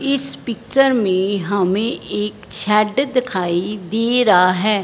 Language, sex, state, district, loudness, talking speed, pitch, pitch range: Hindi, male, Punjab, Fazilka, -18 LUFS, 125 wpm, 210 Hz, 195-245 Hz